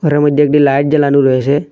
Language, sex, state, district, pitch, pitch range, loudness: Bengali, male, Assam, Hailakandi, 145 Hz, 140-150 Hz, -11 LUFS